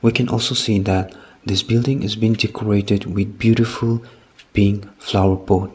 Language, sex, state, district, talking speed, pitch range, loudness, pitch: English, male, Nagaland, Kohima, 155 wpm, 100-115 Hz, -19 LUFS, 105 Hz